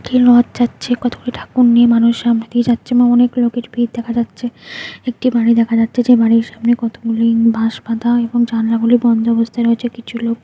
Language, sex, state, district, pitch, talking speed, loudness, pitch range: Bengali, female, West Bengal, Jhargram, 235 Hz, 185 wpm, -14 LUFS, 230-240 Hz